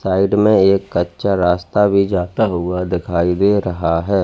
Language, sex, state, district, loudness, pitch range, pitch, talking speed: Hindi, male, Uttar Pradesh, Lalitpur, -16 LUFS, 90-100 Hz, 95 Hz, 170 wpm